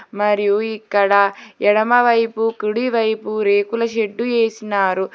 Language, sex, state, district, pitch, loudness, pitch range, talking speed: Telugu, female, Telangana, Hyderabad, 215 Hz, -17 LUFS, 205-225 Hz, 105 wpm